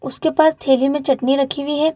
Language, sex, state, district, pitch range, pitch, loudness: Hindi, female, Bihar, Gaya, 270-315 Hz, 285 Hz, -17 LUFS